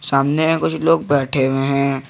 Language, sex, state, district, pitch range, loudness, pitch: Hindi, male, Jharkhand, Garhwa, 135-160 Hz, -17 LUFS, 140 Hz